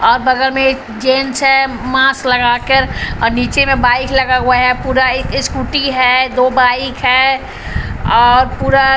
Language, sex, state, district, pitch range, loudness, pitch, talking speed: Hindi, female, Bihar, Patna, 250-270 Hz, -12 LUFS, 260 Hz, 135 wpm